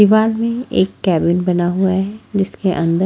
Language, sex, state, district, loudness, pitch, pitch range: Hindi, female, Haryana, Rohtak, -17 LUFS, 190 Hz, 180-210 Hz